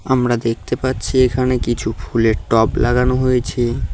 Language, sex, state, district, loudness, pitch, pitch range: Bengali, male, West Bengal, Cooch Behar, -17 LUFS, 120 Hz, 115-130 Hz